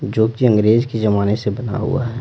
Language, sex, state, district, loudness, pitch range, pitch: Hindi, male, Bihar, Patna, -17 LUFS, 105-120 Hz, 110 Hz